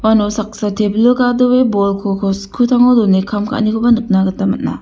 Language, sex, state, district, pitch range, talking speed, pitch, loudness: Garo, female, Meghalaya, West Garo Hills, 200-240 Hz, 160 wpm, 215 Hz, -14 LUFS